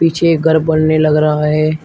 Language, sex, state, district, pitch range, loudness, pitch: Hindi, male, Uttar Pradesh, Shamli, 155-160 Hz, -12 LUFS, 155 Hz